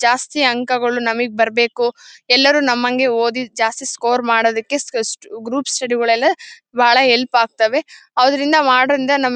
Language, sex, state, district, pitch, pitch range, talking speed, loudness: Kannada, female, Karnataka, Bellary, 245 Hz, 235-280 Hz, 130 wpm, -16 LUFS